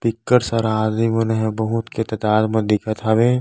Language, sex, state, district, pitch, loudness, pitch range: Chhattisgarhi, male, Chhattisgarh, Bastar, 110 Hz, -19 LUFS, 110-115 Hz